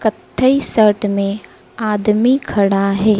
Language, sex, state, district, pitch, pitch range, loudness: Hindi, female, Madhya Pradesh, Dhar, 210 Hz, 200-220 Hz, -15 LUFS